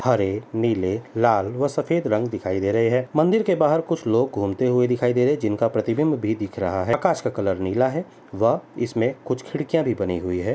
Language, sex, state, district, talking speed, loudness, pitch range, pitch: Hindi, male, Uttar Pradesh, Etah, 225 wpm, -22 LUFS, 105-145 Hz, 120 Hz